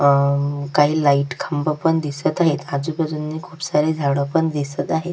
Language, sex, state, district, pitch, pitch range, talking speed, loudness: Marathi, female, Maharashtra, Sindhudurg, 150 Hz, 140-160 Hz, 165 wpm, -20 LUFS